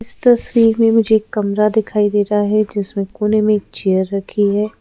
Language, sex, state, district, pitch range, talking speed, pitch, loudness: Hindi, female, Madhya Pradesh, Bhopal, 205-220 Hz, 210 wpm, 210 Hz, -16 LUFS